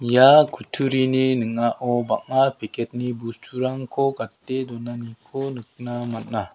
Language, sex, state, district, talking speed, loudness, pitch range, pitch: Garo, male, Meghalaya, South Garo Hills, 100 wpm, -22 LUFS, 115-130 Hz, 125 Hz